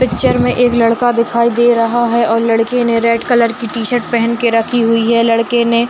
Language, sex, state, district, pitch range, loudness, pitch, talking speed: Hindi, female, Bihar, Madhepura, 230-240 Hz, -13 LUFS, 235 Hz, 235 wpm